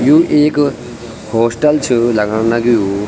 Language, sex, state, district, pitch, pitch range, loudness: Garhwali, male, Uttarakhand, Tehri Garhwal, 120 Hz, 115-150 Hz, -13 LUFS